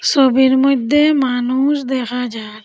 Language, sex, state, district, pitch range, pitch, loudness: Bengali, female, Assam, Hailakandi, 250-275 Hz, 265 Hz, -15 LUFS